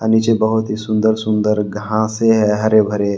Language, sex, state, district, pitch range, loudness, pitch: Hindi, male, Jharkhand, Palamu, 105-110 Hz, -16 LUFS, 110 Hz